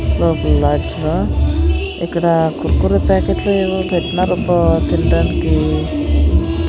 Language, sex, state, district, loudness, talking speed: Telugu, female, Andhra Pradesh, Sri Satya Sai, -16 LUFS, 65 wpm